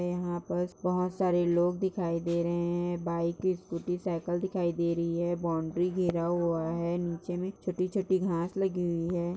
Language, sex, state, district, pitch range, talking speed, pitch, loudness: Hindi, female, Chhattisgarh, Balrampur, 170-180 Hz, 185 wpm, 175 Hz, -31 LUFS